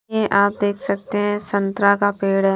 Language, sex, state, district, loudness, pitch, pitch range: Hindi, female, Punjab, Fazilka, -19 LUFS, 200 Hz, 200-205 Hz